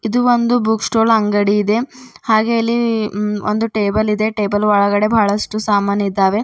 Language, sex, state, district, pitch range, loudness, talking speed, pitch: Kannada, female, Karnataka, Bidar, 205-225 Hz, -16 LUFS, 130 wpm, 215 Hz